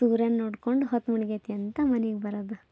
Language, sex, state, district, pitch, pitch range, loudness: Kannada, female, Karnataka, Belgaum, 225 Hz, 215-240 Hz, -28 LUFS